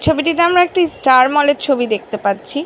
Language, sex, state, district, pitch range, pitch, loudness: Bengali, female, West Bengal, North 24 Parganas, 245-330 Hz, 290 Hz, -14 LUFS